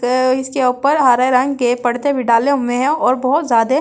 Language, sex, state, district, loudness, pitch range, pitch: Hindi, female, Delhi, New Delhi, -15 LUFS, 245-275 Hz, 255 Hz